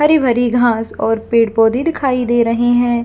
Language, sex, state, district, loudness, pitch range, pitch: Hindi, female, Jharkhand, Jamtara, -14 LUFS, 230-250 Hz, 240 Hz